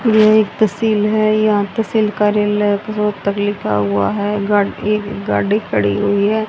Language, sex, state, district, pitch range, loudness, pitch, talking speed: Hindi, female, Haryana, Rohtak, 200-215 Hz, -16 LUFS, 210 Hz, 155 wpm